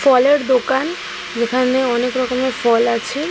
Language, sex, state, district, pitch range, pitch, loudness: Bengali, female, West Bengal, Jalpaiguri, 240-265 Hz, 255 Hz, -17 LUFS